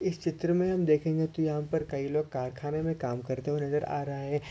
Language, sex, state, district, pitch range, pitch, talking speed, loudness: Hindi, male, Maharashtra, Sindhudurg, 140-160 Hz, 150 Hz, 255 wpm, -31 LUFS